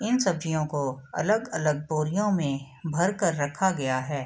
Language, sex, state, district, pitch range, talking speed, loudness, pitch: Hindi, female, Bihar, Sitamarhi, 145-190 Hz, 155 wpm, -27 LUFS, 155 Hz